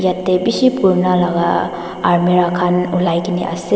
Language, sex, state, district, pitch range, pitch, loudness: Nagamese, female, Nagaland, Dimapur, 175-185 Hz, 180 Hz, -15 LUFS